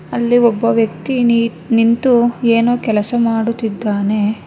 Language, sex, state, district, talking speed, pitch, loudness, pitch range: Kannada, female, Karnataka, Bangalore, 110 wpm, 230 Hz, -15 LUFS, 220-240 Hz